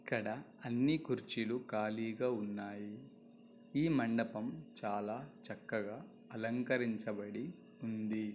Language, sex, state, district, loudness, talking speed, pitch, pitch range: Telugu, male, Telangana, Karimnagar, -39 LUFS, 80 wpm, 115 Hz, 110-125 Hz